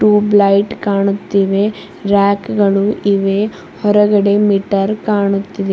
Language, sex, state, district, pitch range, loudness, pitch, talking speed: Kannada, female, Karnataka, Bidar, 195-210 Hz, -14 LUFS, 200 Hz, 95 wpm